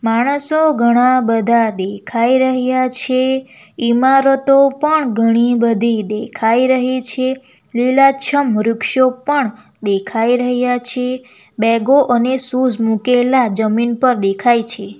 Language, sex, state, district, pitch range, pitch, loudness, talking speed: Gujarati, female, Gujarat, Valsad, 230-260 Hz, 250 Hz, -14 LUFS, 110 wpm